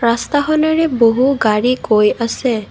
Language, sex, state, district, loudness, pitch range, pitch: Assamese, female, Assam, Kamrup Metropolitan, -14 LUFS, 230-285 Hz, 240 Hz